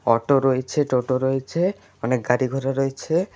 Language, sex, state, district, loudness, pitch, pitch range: Bengali, male, West Bengal, Alipurduar, -22 LUFS, 135 Hz, 130-140 Hz